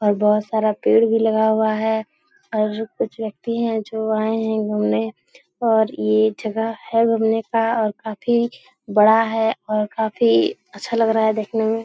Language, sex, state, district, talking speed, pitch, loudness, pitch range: Hindi, female, Bihar, Jahanabad, 175 wpm, 220 Hz, -20 LUFS, 215-225 Hz